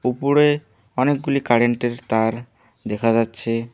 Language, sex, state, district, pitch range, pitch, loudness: Bengali, male, West Bengal, Alipurduar, 115-130 Hz, 120 Hz, -20 LUFS